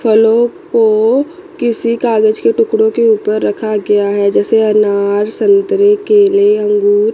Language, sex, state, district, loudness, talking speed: Hindi, female, Chandigarh, Chandigarh, -12 LUFS, 135 wpm